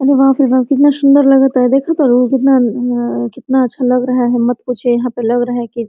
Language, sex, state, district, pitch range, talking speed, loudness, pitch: Hindi, female, Jharkhand, Sahebganj, 245-270 Hz, 255 wpm, -12 LUFS, 250 Hz